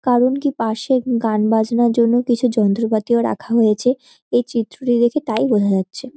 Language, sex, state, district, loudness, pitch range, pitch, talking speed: Bengali, female, West Bengal, North 24 Parganas, -18 LUFS, 220-250 Hz, 235 Hz, 155 wpm